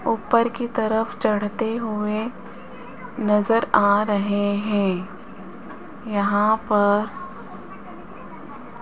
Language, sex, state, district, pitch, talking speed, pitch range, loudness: Hindi, female, Rajasthan, Jaipur, 220 Hz, 80 wpm, 205-235 Hz, -22 LUFS